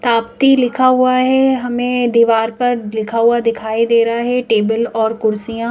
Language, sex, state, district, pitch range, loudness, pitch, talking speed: Hindi, female, Madhya Pradesh, Bhopal, 230-250 Hz, -14 LUFS, 235 Hz, 180 wpm